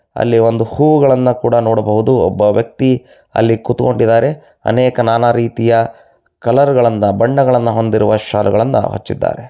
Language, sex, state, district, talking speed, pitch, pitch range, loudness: Kannada, male, Karnataka, Bellary, 125 wpm, 115 Hz, 110-125 Hz, -13 LUFS